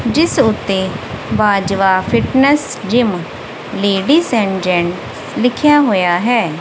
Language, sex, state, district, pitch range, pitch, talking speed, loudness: Punjabi, female, Punjab, Kapurthala, 190-250 Hz, 205 Hz, 100 wpm, -14 LUFS